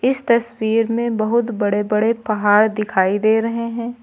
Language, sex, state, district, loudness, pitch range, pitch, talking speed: Hindi, female, Uttar Pradesh, Lucknow, -18 LUFS, 210-235 Hz, 225 Hz, 165 wpm